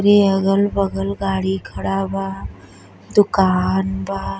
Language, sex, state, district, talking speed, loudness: Bhojpuri, female, Uttar Pradesh, Deoria, 95 wpm, -19 LUFS